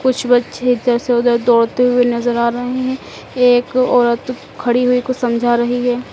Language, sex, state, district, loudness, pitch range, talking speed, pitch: Hindi, female, Madhya Pradesh, Dhar, -15 LUFS, 240-250 Hz, 185 wpm, 245 Hz